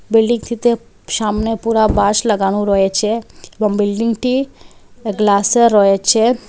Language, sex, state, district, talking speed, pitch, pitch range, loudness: Bengali, female, Assam, Hailakandi, 100 wpm, 220 Hz, 205-230 Hz, -15 LUFS